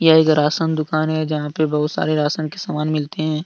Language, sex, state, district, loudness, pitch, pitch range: Hindi, male, Jharkhand, Deoghar, -19 LUFS, 155 Hz, 150-155 Hz